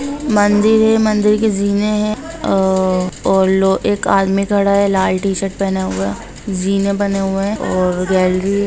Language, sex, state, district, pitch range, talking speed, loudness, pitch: Hindi, female, Bihar, Gopalganj, 190-205 Hz, 165 wpm, -15 LUFS, 195 Hz